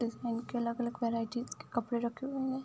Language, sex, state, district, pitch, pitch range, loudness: Hindi, female, Uttar Pradesh, Budaun, 235 Hz, 235-245 Hz, -36 LUFS